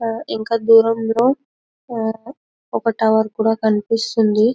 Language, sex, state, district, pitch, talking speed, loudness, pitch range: Telugu, female, Telangana, Karimnagar, 225 Hz, 105 wpm, -18 LUFS, 220-230 Hz